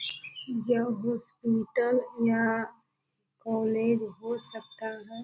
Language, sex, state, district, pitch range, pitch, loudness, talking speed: Hindi, female, Bihar, Purnia, 225-235 Hz, 230 Hz, -29 LUFS, 80 wpm